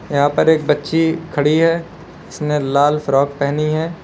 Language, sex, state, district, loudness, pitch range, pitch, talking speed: Hindi, male, Uttar Pradesh, Lalitpur, -16 LUFS, 145-165 Hz, 155 Hz, 165 wpm